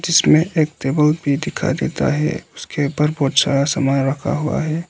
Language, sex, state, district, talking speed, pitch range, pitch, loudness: Hindi, male, Arunachal Pradesh, Lower Dibang Valley, 185 wpm, 140-155 Hz, 150 Hz, -18 LUFS